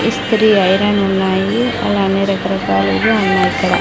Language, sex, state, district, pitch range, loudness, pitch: Telugu, female, Andhra Pradesh, Sri Satya Sai, 190-205 Hz, -14 LUFS, 195 Hz